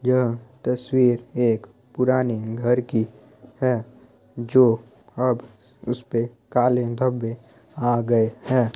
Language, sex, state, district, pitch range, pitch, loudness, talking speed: Hindi, male, Bihar, Muzaffarpur, 115-125 Hz, 120 Hz, -23 LUFS, 105 wpm